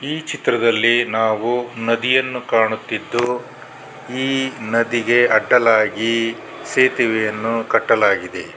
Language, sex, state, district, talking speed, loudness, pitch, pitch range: Kannada, male, Karnataka, Bangalore, 70 wpm, -18 LUFS, 120 Hz, 115-130 Hz